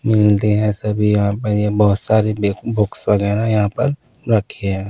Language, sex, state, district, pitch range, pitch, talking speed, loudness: Hindi, male, Punjab, Pathankot, 105-110 Hz, 105 Hz, 185 wpm, -17 LUFS